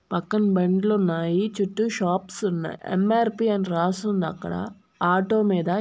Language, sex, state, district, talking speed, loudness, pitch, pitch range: Telugu, female, Andhra Pradesh, Guntur, 135 wpm, -24 LUFS, 195 Hz, 180-215 Hz